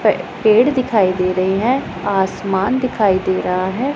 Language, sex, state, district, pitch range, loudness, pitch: Hindi, female, Punjab, Pathankot, 185-245 Hz, -16 LUFS, 195 Hz